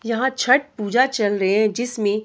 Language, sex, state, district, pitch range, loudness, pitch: Hindi, female, Bihar, Sitamarhi, 210-255 Hz, -19 LUFS, 225 Hz